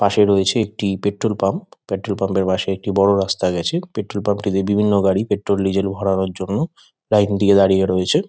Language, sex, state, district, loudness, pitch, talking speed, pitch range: Bengali, male, West Bengal, Kolkata, -18 LUFS, 100 Hz, 190 wpm, 95-100 Hz